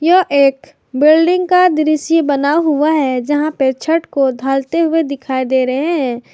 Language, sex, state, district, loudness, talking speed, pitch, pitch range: Hindi, female, Jharkhand, Garhwa, -14 LUFS, 170 wpm, 295 Hz, 270-325 Hz